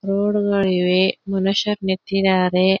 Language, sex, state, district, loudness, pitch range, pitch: Kannada, female, Karnataka, Belgaum, -19 LUFS, 185-200 Hz, 195 Hz